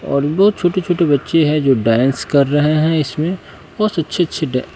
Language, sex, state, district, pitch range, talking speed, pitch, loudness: Hindi, male, Bihar, West Champaran, 140-175 Hz, 200 wpm, 155 Hz, -16 LUFS